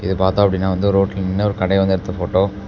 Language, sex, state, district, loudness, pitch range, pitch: Tamil, male, Tamil Nadu, Namakkal, -18 LUFS, 95-100 Hz, 95 Hz